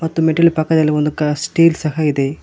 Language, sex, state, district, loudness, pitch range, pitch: Kannada, male, Karnataka, Koppal, -15 LUFS, 150-160 Hz, 155 Hz